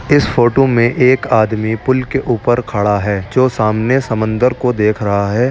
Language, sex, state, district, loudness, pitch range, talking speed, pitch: Hindi, male, Rajasthan, Churu, -14 LUFS, 110-130 Hz, 185 wpm, 120 Hz